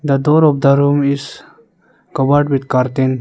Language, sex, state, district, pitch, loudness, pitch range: English, male, Arunachal Pradesh, Lower Dibang Valley, 140 Hz, -14 LUFS, 135-145 Hz